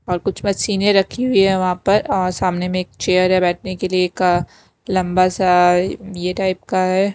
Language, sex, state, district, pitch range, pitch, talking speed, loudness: Hindi, female, Himachal Pradesh, Shimla, 180-195 Hz, 185 Hz, 195 wpm, -17 LUFS